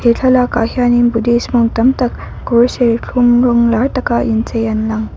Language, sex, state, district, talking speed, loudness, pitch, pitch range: Mizo, female, Mizoram, Aizawl, 195 wpm, -13 LUFS, 240 Hz, 230-245 Hz